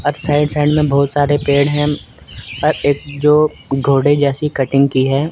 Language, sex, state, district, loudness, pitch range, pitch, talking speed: Hindi, male, Chandigarh, Chandigarh, -15 LUFS, 140-150 Hz, 145 Hz, 180 wpm